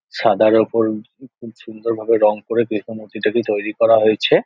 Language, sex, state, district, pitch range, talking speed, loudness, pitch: Bengali, male, West Bengal, Jhargram, 110-115 Hz, 175 wpm, -17 LUFS, 110 Hz